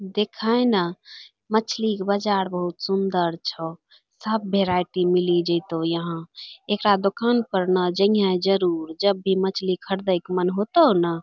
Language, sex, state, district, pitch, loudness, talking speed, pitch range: Angika, female, Bihar, Bhagalpur, 190 Hz, -22 LUFS, 140 wpm, 175-205 Hz